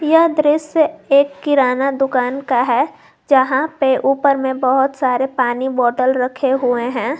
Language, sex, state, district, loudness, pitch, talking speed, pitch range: Hindi, female, Jharkhand, Garhwa, -16 LUFS, 265 Hz, 150 wpm, 255-280 Hz